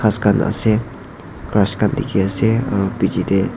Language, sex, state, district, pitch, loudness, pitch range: Nagamese, male, Nagaland, Dimapur, 105 Hz, -18 LUFS, 95-110 Hz